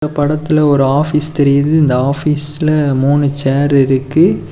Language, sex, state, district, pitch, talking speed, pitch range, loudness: Tamil, male, Tamil Nadu, Kanyakumari, 145 Hz, 120 wpm, 140-150 Hz, -13 LUFS